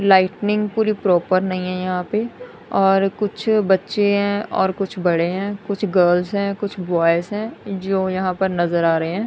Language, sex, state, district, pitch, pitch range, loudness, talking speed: Hindi, female, Punjab, Kapurthala, 195 Hz, 185-205 Hz, -19 LUFS, 180 wpm